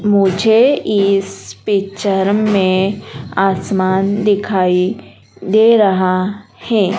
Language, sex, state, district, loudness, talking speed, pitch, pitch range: Hindi, female, Madhya Pradesh, Dhar, -14 LUFS, 75 wpm, 195 Hz, 185-205 Hz